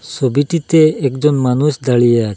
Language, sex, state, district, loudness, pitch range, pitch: Bengali, male, Assam, Hailakandi, -14 LUFS, 125-155 Hz, 140 Hz